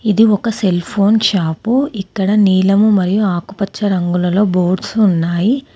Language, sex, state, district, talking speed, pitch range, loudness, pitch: Telugu, female, Telangana, Komaram Bheem, 125 wpm, 185-215 Hz, -14 LUFS, 200 Hz